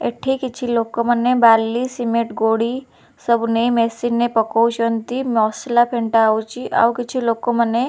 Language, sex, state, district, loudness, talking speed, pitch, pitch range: Odia, female, Odisha, Khordha, -18 LUFS, 135 wpm, 235 Hz, 230-240 Hz